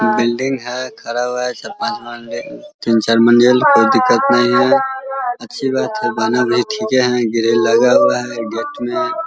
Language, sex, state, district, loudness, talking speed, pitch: Hindi, male, Bihar, Vaishali, -15 LUFS, 180 wpm, 125 Hz